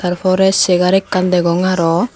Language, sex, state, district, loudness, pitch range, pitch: Chakma, female, Tripura, Dhalai, -13 LUFS, 180-190 Hz, 185 Hz